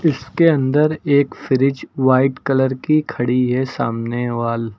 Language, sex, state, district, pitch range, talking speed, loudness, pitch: Hindi, male, Uttar Pradesh, Lucknow, 125-145 Hz, 140 wpm, -18 LUFS, 130 Hz